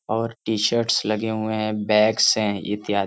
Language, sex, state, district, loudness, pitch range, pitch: Hindi, male, Uttar Pradesh, Varanasi, -21 LUFS, 105-110 Hz, 110 Hz